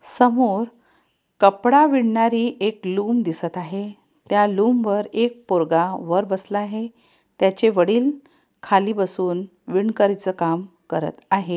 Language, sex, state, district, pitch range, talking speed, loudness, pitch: Marathi, female, Maharashtra, Pune, 185-235 Hz, 120 wpm, -20 LUFS, 205 Hz